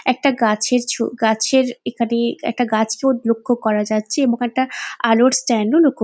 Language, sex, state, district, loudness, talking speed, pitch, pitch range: Bengali, female, West Bengal, Jalpaiguri, -18 LUFS, 170 wpm, 235 Hz, 220-260 Hz